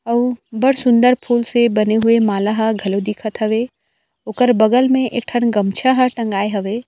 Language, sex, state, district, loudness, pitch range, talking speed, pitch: Chhattisgarhi, female, Chhattisgarh, Rajnandgaon, -16 LUFS, 215-245 Hz, 185 wpm, 230 Hz